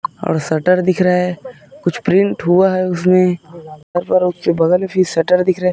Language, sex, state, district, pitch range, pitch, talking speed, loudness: Hindi, male, Chhattisgarh, Bilaspur, 170-185 Hz, 180 Hz, 210 wpm, -15 LUFS